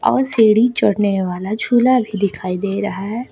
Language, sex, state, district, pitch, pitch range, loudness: Hindi, female, Uttar Pradesh, Lucknow, 210 Hz, 195-240 Hz, -16 LUFS